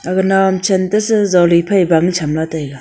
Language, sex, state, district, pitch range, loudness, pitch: Wancho, female, Arunachal Pradesh, Longding, 165-195 Hz, -14 LUFS, 185 Hz